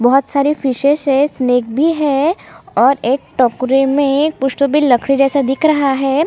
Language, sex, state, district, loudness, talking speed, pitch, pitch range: Hindi, female, Chhattisgarh, Kabirdham, -14 LUFS, 180 wpm, 275 Hz, 265-285 Hz